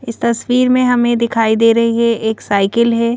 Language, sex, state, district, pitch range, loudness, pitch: Hindi, female, Madhya Pradesh, Bhopal, 230-240 Hz, -14 LUFS, 235 Hz